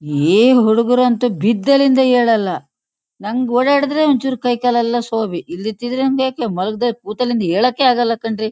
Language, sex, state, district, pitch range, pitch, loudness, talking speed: Kannada, female, Karnataka, Shimoga, 220-255 Hz, 240 Hz, -15 LUFS, 115 wpm